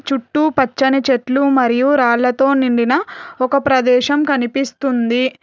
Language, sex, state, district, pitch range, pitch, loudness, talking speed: Telugu, female, Telangana, Hyderabad, 250-280 Hz, 265 Hz, -15 LUFS, 100 wpm